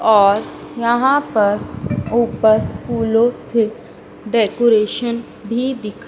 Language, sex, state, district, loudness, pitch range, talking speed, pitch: Hindi, female, Madhya Pradesh, Dhar, -17 LUFS, 215-235 Hz, 90 wpm, 230 Hz